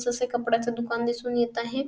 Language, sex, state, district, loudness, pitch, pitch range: Marathi, female, Maharashtra, Sindhudurg, -27 LUFS, 240 Hz, 235-245 Hz